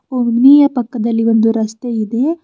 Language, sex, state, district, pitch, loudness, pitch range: Kannada, female, Karnataka, Bidar, 235 Hz, -13 LUFS, 225-260 Hz